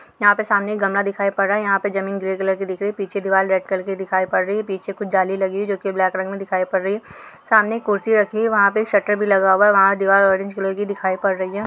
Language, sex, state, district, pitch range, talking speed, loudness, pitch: Hindi, female, Maharashtra, Chandrapur, 190-205 Hz, 305 wpm, -19 LUFS, 195 Hz